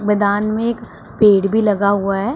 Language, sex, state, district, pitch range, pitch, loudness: Hindi, female, Punjab, Pathankot, 200-220 Hz, 210 Hz, -16 LUFS